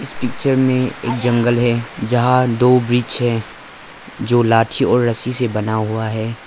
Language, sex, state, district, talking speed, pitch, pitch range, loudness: Hindi, male, Arunachal Pradesh, Lower Dibang Valley, 160 wpm, 120 Hz, 115-125 Hz, -16 LUFS